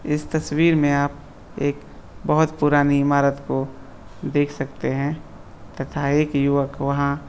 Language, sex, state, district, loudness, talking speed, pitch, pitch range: Hindi, male, Bihar, East Champaran, -21 LUFS, 130 wpm, 140 Hz, 135-145 Hz